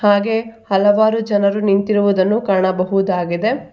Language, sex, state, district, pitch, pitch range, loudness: Kannada, female, Karnataka, Bangalore, 200 Hz, 195-215 Hz, -16 LUFS